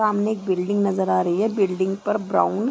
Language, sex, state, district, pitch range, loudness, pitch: Hindi, female, Chhattisgarh, Raigarh, 190-210 Hz, -22 LUFS, 200 Hz